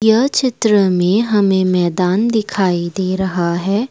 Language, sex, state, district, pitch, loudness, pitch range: Hindi, female, Assam, Kamrup Metropolitan, 195 Hz, -15 LUFS, 180-220 Hz